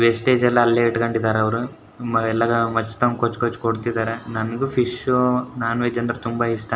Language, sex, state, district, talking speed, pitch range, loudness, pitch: Kannada, male, Karnataka, Shimoga, 160 wpm, 115-120 Hz, -21 LUFS, 115 Hz